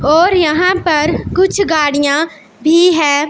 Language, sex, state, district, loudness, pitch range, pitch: Hindi, female, Punjab, Pathankot, -12 LUFS, 295-355 Hz, 315 Hz